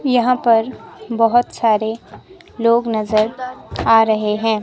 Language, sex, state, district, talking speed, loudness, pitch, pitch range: Hindi, female, Himachal Pradesh, Shimla, 115 wpm, -16 LUFS, 230 Hz, 220-240 Hz